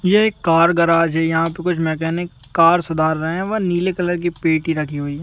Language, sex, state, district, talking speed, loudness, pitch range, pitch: Hindi, male, Madhya Pradesh, Bhopal, 240 wpm, -18 LUFS, 160-175 Hz, 165 Hz